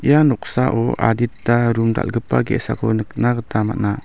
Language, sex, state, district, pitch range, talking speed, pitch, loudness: Garo, male, Meghalaya, West Garo Hills, 110-125 Hz, 135 wpm, 115 Hz, -18 LUFS